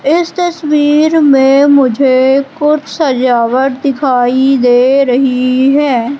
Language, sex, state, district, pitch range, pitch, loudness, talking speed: Hindi, female, Madhya Pradesh, Katni, 255-295 Hz, 270 Hz, -10 LUFS, 95 wpm